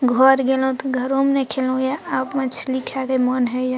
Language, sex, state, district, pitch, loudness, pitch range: Maithili, female, Bihar, Purnia, 260 Hz, -20 LUFS, 255-265 Hz